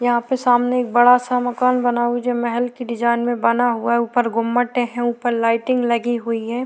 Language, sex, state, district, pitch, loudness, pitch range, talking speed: Hindi, female, Bihar, Vaishali, 240 Hz, -18 LUFS, 235-245 Hz, 225 wpm